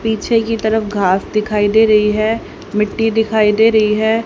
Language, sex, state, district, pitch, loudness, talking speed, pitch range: Hindi, female, Haryana, Rohtak, 220 Hz, -14 LUFS, 185 wpm, 210-225 Hz